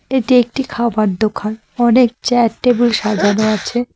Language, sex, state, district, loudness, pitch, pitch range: Bengali, female, West Bengal, Cooch Behar, -15 LUFS, 235 Hz, 215-245 Hz